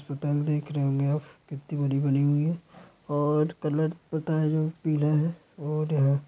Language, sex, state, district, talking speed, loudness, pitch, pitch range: Hindi, male, Bihar, Supaul, 190 wpm, -27 LUFS, 150 Hz, 145-155 Hz